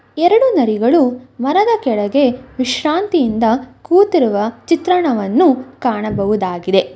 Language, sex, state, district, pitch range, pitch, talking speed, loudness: Kannada, female, Karnataka, Shimoga, 220-335 Hz, 255 Hz, 70 wpm, -15 LUFS